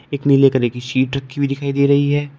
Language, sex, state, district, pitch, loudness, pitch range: Hindi, male, Uttar Pradesh, Shamli, 140 Hz, -17 LUFS, 135-140 Hz